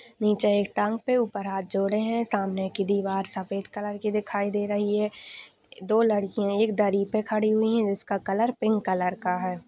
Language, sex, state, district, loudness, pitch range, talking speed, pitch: Hindi, female, Maharashtra, Pune, -26 LUFS, 195-215 Hz, 200 wpm, 205 Hz